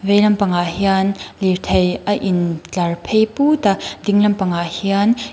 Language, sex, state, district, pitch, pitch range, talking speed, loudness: Mizo, female, Mizoram, Aizawl, 195 Hz, 180-205 Hz, 160 wpm, -17 LUFS